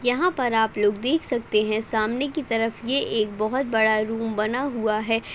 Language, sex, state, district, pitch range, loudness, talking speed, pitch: Hindi, female, Uttar Pradesh, Ghazipur, 215-250 Hz, -23 LUFS, 215 wpm, 225 Hz